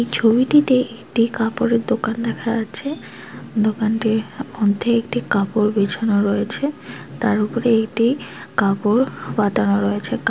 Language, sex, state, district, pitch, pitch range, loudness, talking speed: Bengali, female, West Bengal, Dakshin Dinajpur, 225 Hz, 210-240 Hz, -19 LUFS, 120 wpm